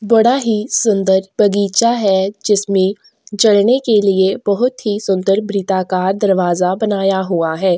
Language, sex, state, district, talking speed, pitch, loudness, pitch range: Hindi, female, Chhattisgarh, Korba, 130 wpm, 200 Hz, -15 LUFS, 190-215 Hz